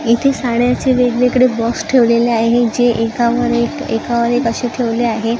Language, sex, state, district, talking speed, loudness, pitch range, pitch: Marathi, female, Maharashtra, Gondia, 155 wpm, -14 LUFS, 235-245 Hz, 240 Hz